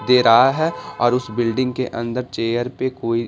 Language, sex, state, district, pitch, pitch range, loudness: Hindi, male, Bihar, Patna, 125 Hz, 115-130 Hz, -19 LUFS